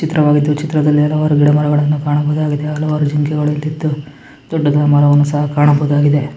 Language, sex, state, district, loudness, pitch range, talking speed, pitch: Kannada, male, Karnataka, Mysore, -14 LUFS, 145-150 Hz, 140 wpm, 150 Hz